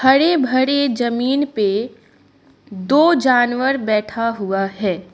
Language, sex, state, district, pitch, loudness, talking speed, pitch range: Hindi, female, Arunachal Pradesh, Lower Dibang Valley, 245 Hz, -17 LUFS, 105 wpm, 210-270 Hz